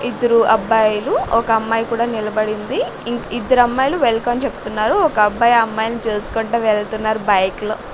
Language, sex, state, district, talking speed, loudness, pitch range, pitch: Telugu, female, Andhra Pradesh, Sri Satya Sai, 135 wpm, -17 LUFS, 215-235 Hz, 225 Hz